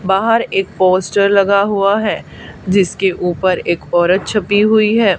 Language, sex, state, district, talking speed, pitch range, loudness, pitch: Hindi, female, Haryana, Charkhi Dadri, 150 wpm, 185-205 Hz, -14 LUFS, 195 Hz